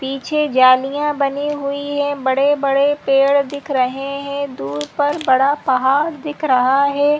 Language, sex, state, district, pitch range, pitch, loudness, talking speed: Hindi, female, Chhattisgarh, Bastar, 265-290 Hz, 280 Hz, -17 LUFS, 150 wpm